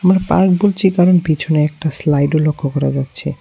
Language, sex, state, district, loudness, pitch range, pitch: Bengali, male, Tripura, West Tripura, -15 LUFS, 145-185 Hz, 155 Hz